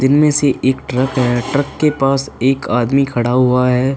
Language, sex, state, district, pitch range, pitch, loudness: Hindi, male, Uttar Pradesh, Budaun, 125-140 Hz, 130 Hz, -15 LUFS